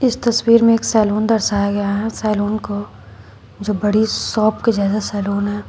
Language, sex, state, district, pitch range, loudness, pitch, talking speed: Hindi, female, Uttar Pradesh, Shamli, 200-225 Hz, -17 LUFS, 210 Hz, 180 wpm